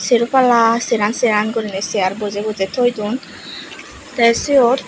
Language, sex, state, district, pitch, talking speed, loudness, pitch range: Chakma, female, Tripura, West Tripura, 230 Hz, 145 wpm, -16 LUFS, 210-245 Hz